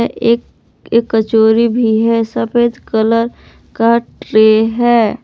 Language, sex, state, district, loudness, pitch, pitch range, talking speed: Hindi, female, Jharkhand, Palamu, -13 LUFS, 230 Hz, 220-235 Hz, 115 wpm